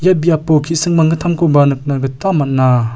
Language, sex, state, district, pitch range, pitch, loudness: Garo, male, Meghalaya, South Garo Hills, 135-170 Hz, 155 Hz, -13 LUFS